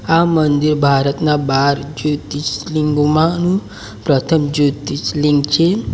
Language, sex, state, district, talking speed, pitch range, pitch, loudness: Gujarati, male, Gujarat, Valsad, 80 wpm, 145-160 Hz, 150 Hz, -16 LUFS